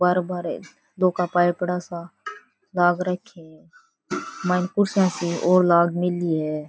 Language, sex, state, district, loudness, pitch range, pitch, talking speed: Rajasthani, female, Rajasthan, Churu, -22 LUFS, 175-185 Hz, 180 Hz, 155 wpm